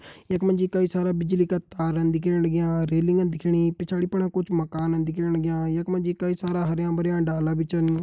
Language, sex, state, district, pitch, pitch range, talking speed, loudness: Hindi, male, Uttarakhand, Uttarkashi, 170 Hz, 165-180 Hz, 185 wpm, -24 LUFS